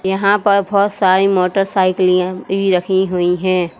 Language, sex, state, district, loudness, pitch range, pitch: Hindi, female, Uttar Pradesh, Lalitpur, -15 LUFS, 185-195 Hz, 190 Hz